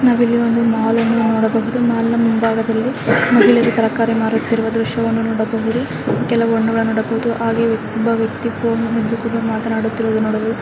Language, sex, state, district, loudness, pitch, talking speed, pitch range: Kannada, female, Karnataka, Dharwad, -16 LUFS, 230 Hz, 125 wpm, 225-230 Hz